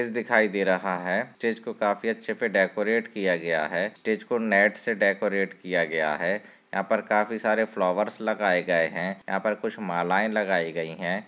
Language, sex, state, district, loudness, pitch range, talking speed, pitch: Hindi, male, Jharkhand, Sahebganj, -26 LUFS, 95-110 Hz, 190 wpm, 105 Hz